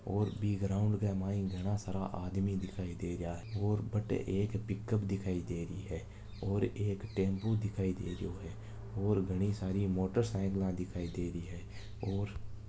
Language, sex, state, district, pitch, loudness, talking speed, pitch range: Marwari, male, Rajasthan, Nagaur, 100 Hz, -36 LUFS, 170 wpm, 95-105 Hz